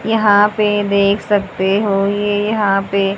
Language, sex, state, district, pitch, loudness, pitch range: Hindi, female, Haryana, Jhajjar, 205 Hz, -15 LUFS, 195-205 Hz